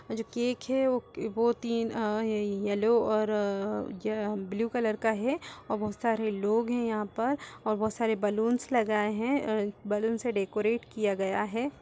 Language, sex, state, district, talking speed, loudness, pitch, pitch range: Hindi, female, Uttar Pradesh, Etah, 170 wpm, -30 LUFS, 220 Hz, 210-235 Hz